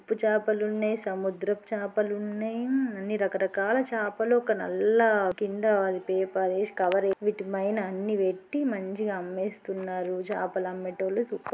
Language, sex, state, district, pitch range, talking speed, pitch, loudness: Telugu, female, Andhra Pradesh, Guntur, 190-215 Hz, 130 wpm, 205 Hz, -28 LUFS